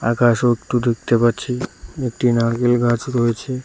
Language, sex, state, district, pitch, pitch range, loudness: Bengali, male, West Bengal, Cooch Behar, 120 Hz, 120-125 Hz, -18 LUFS